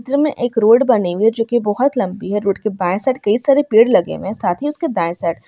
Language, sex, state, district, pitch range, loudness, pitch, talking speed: Hindi, female, Uttar Pradesh, Ghazipur, 195-260 Hz, -16 LUFS, 225 Hz, 315 wpm